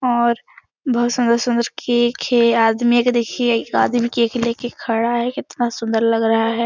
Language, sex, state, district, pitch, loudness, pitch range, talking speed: Hindi, female, Bihar, Supaul, 235 Hz, -18 LUFS, 230-240 Hz, 170 wpm